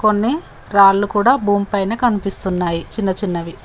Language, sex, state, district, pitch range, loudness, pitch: Telugu, female, Telangana, Mahabubabad, 190-215 Hz, -17 LUFS, 200 Hz